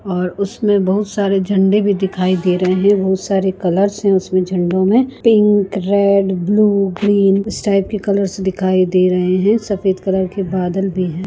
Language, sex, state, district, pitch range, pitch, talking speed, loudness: Hindi, female, Bihar, Gaya, 185-200 Hz, 195 Hz, 185 wpm, -15 LUFS